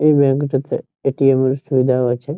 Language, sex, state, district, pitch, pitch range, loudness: Bengali, male, West Bengal, Jhargram, 135 Hz, 130-145 Hz, -17 LUFS